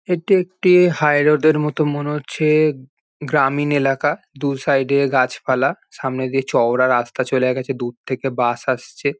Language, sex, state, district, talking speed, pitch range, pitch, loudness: Bengali, male, West Bengal, Jhargram, 150 wpm, 130-150 Hz, 140 Hz, -18 LUFS